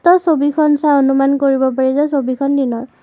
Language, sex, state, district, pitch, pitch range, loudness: Assamese, female, Assam, Kamrup Metropolitan, 280 Hz, 265-295 Hz, -14 LUFS